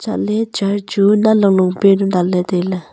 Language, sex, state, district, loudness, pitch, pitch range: Wancho, female, Arunachal Pradesh, Longding, -15 LUFS, 195 Hz, 185-205 Hz